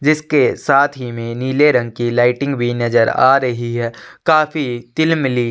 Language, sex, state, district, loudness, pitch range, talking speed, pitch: Hindi, male, Chhattisgarh, Sukma, -16 LUFS, 120-145 Hz, 150 wpm, 125 Hz